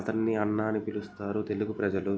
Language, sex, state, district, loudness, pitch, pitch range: Telugu, male, Andhra Pradesh, Guntur, -31 LUFS, 105 Hz, 105-110 Hz